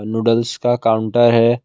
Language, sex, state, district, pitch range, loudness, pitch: Hindi, male, Assam, Kamrup Metropolitan, 115-120 Hz, -16 LUFS, 115 Hz